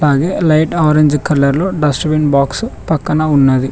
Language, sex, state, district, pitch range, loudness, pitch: Telugu, male, Telangana, Mahabubabad, 140-155 Hz, -13 LUFS, 150 Hz